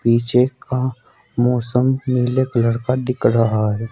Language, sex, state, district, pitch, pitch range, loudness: Hindi, male, Uttar Pradesh, Saharanpur, 125 Hz, 115-130 Hz, -18 LUFS